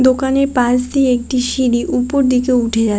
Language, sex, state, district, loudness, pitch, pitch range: Bengali, female, West Bengal, Kolkata, -15 LUFS, 250 Hz, 245-265 Hz